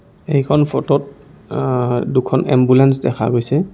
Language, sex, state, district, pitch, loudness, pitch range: Assamese, male, Assam, Kamrup Metropolitan, 135 Hz, -16 LUFS, 125-140 Hz